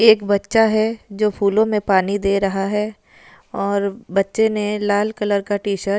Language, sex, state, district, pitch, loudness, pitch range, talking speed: Hindi, female, Punjab, Fazilka, 205 Hz, -19 LUFS, 200-215 Hz, 180 wpm